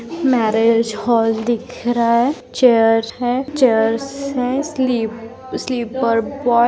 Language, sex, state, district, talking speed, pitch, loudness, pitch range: Hindi, female, Maharashtra, Aurangabad, 115 wpm, 240 Hz, -17 LUFS, 230-255 Hz